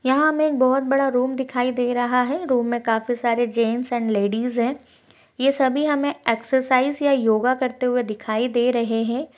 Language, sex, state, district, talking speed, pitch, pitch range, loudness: Hindi, female, Uttar Pradesh, Budaun, 190 wpm, 250 Hz, 240-265 Hz, -21 LUFS